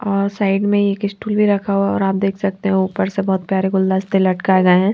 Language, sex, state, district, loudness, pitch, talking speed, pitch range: Hindi, female, Bihar, Patna, -17 LUFS, 195 Hz, 255 wpm, 190-200 Hz